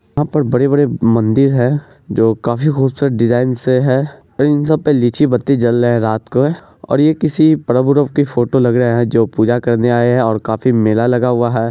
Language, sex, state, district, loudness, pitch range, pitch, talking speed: Hindi, male, Bihar, Araria, -14 LUFS, 120-145 Hz, 125 Hz, 210 wpm